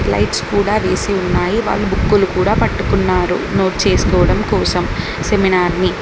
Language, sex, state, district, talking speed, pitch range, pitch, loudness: Telugu, female, Telangana, Mahabubabad, 130 wpm, 180-200 Hz, 185 Hz, -15 LUFS